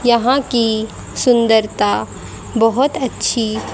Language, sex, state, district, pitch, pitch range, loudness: Hindi, female, Haryana, Charkhi Dadri, 225 Hz, 215-245 Hz, -16 LUFS